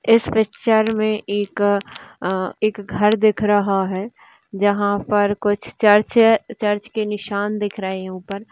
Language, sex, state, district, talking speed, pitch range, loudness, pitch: Hindi, female, Chhattisgarh, Jashpur, 150 wpm, 200-215 Hz, -19 LUFS, 205 Hz